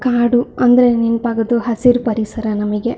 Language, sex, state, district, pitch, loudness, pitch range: Kannada, female, Karnataka, Shimoga, 235 Hz, -15 LUFS, 225-245 Hz